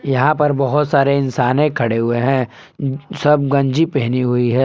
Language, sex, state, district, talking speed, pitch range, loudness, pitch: Hindi, male, Jharkhand, Palamu, 170 wpm, 125-150 Hz, -16 LUFS, 135 Hz